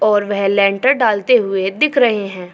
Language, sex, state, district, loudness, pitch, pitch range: Hindi, female, Uttar Pradesh, Jyotiba Phule Nagar, -15 LUFS, 205 Hz, 195-245 Hz